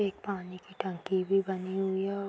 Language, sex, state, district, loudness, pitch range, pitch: Hindi, female, Uttar Pradesh, Budaun, -32 LUFS, 190-195 Hz, 190 Hz